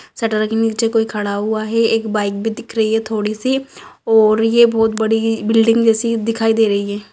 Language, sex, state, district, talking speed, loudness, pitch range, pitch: Hindi, female, Bihar, Bhagalpur, 210 wpm, -16 LUFS, 215-225 Hz, 225 Hz